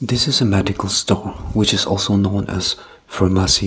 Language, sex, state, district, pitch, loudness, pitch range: English, male, Nagaland, Kohima, 100 Hz, -17 LUFS, 95-105 Hz